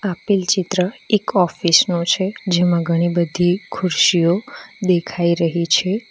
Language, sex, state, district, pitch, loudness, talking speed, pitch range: Gujarati, female, Gujarat, Valsad, 180 Hz, -17 LUFS, 130 wpm, 170-190 Hz